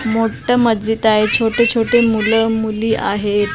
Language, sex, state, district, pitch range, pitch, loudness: Marathi, female, Maharashtra, Mumbai Suburban, 215-230 Hz, 225 Hz, -15 LUFS